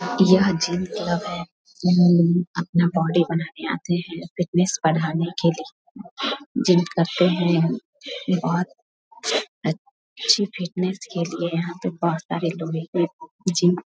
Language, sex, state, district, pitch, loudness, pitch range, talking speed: Hindi, female, Bihar, Vaishali, 175 Hz, -22 LUFS, 170-190 Hz, 140 wpm